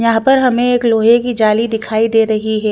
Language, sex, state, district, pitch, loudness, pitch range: Hindi, female, Chandigarh, Chandigarh, 225 Hz, -13 LUFS, 220-240 Hz